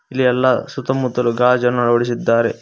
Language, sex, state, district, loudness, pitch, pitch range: Kannada, male, Karnataka, Koppal, -17 LUFS, 125 Hz, 120-130 Hz